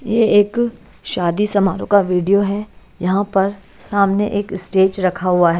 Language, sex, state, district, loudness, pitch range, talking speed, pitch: Hindi, female, Haryana, Charkhi Dadri, -17 LUFS, 185-205 Hz, 160 wpm, 200 Hz